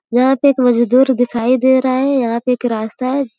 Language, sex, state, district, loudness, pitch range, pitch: Hindi, female, Uttar Pradesh, Gorakhpur, -14 LUFS, 240-260 Hz, 255 Hz